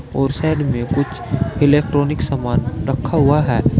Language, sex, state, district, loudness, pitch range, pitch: Hindi, male, Uttar Pradesh, Saharanpur, -18 LUFS, 120-145 Hz, 135 Hz